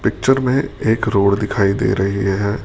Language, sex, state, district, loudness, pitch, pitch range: Hindi, male, Rajasthan, Jaipur, -17 LUFS, 105 Hz, 100-125 Hz